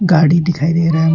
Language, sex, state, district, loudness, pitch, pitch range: Hindi, male, West Bengal, Alipurduar, -13 LUFS, 165 Hz, 160-170 Hz